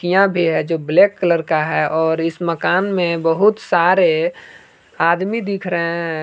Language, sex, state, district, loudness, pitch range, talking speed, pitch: Hindi, male, Jharkhand, Palamu, -17 LUFS, 165-195 Hz, 175 wpm, 170 Hz